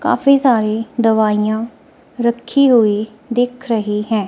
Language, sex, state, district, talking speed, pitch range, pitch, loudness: Hindi, female, Himachal Pradesh, Shimla, 110 wpm, 215-245 Hz, 225 Hz, -15 LUFS